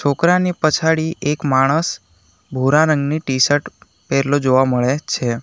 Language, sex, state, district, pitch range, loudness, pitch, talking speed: Gujarati, male, Gujarat, Navsari, 130-160 Hz, -17 LUFS, 145 Hz, 120 wpm